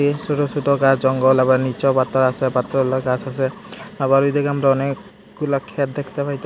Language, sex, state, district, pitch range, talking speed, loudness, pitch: Bengali, male, Tripura, Dhalai, 130-145 Hz, 175 wpm, -19 LUFS, 135 Hz